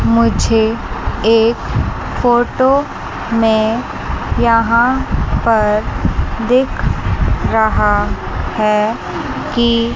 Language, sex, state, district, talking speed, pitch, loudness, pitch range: Hindi, female, Chandigarh, Chandigarh, 60 wpm, 225 Hz, -15 LUFS, 215-235 Hz